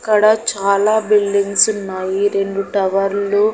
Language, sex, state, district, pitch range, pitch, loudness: Telugu, female, Andhra Pradesh, Annamaya, 195-210 Hz, 200 Hz, -16 LUFS